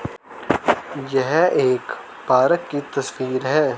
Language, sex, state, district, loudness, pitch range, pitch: Hindi, male, Haryana, Charkhi Dadri, -20 LUFS, 130-155 Hz, 135 Hz